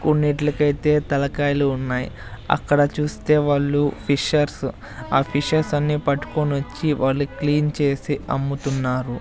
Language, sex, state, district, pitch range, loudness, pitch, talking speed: Telugu, male, Andhra Pradesh, Sri Satya Sai, 135-150 Hz, -21 LUFS, 145 Hz, 100 wpm